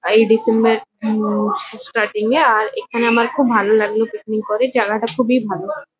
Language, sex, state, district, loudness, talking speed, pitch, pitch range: Bengali, female, West Bengal, Kolkata, -17 LUFS, 180 wpm, 225 Hz, 215-235 Hz